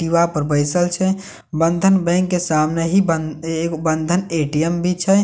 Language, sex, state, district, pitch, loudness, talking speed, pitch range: Maithili, male, Bihar, Katihar, 170 Hz, -18 LUFS, 195 wpm, 160-180 Hz